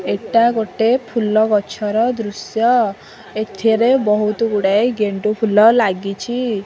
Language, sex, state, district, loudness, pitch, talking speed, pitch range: Odia, female, Odisha, Khordha, -16 LUFS, 220 Hz, 80 wpm, 210-230 Hz